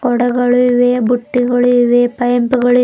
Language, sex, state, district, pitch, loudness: Kannada, female, Karnataka, Bidar, 245 Hz, -13 LUFS